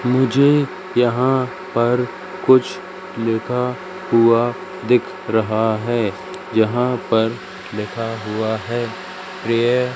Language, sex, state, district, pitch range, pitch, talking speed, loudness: Hindi, male, Madhya Pradesh, Katni, 115-145 Hz, 125 Hz, 90 wpm, -19 LUFS